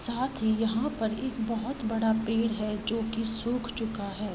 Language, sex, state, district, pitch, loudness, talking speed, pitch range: Hindi, female, Uttar Pradesh, Varanasi, 225 Hz, -30 LUFS, 195 wpm, 220-235 Hz